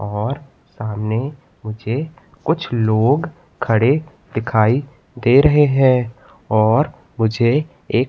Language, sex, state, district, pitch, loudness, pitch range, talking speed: Hindi, male, Madhya Pradesh, Katni, 125 Hz, -18 LUFS, 110-145 Hz, 95 wpm